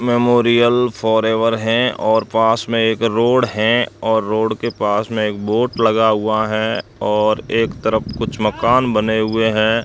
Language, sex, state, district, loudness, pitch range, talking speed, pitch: Hindi, male, Rajasthan, Bikaner, -16 LUFS, 110-115 Hz, 165 wpm, 110 Hz